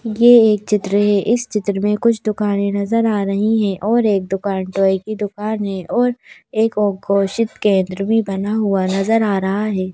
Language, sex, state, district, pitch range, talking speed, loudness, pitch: Hindi, female, Madhya Pradesh, Bhopal, 195-220 Hz, 195 wpm, -17 LUFS, 205 Hz